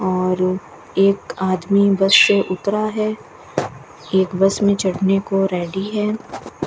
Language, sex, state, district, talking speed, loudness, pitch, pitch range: Hindi, female, Rajasthan, Bikaner, 125 wpm, -18 LUFS, 195 Hz, 185-200 Hz